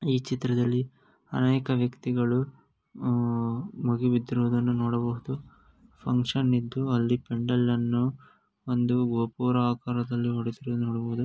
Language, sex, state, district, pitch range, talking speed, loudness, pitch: Kannada, male, Karnataka, Gulbarga, 120-125 Hz, 85 wpm, -27 LUFS, 120 Hz